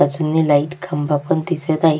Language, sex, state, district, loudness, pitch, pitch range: Marathi, female, Maharashtra, Sindhudurg, -18 LUFS, 155 Hz, 150-165 Hz